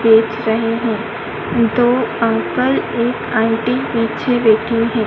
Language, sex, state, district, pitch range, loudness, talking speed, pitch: Hindi, female, Madhya Pradesh, Dhar, 225-235 Hz, -16 LUFS, 120 wpm, 230 Hz